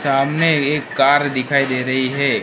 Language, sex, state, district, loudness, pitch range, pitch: Hindi, male, Gujarat, Gandhinagar, -17 LUFS, 130-145 Hz, 140 Hz